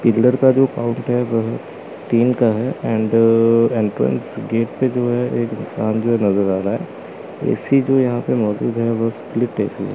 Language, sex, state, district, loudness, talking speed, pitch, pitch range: Hindi, male, Chandigarh, Chandigarh, -18 LUFS, 195 wpm, 115 Hz, 110-125 Hz